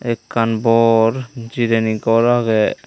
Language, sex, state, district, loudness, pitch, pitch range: Chakma, male, Tripura, Unakoti, -16 LUFS, 115 Hz, 115-120 Hz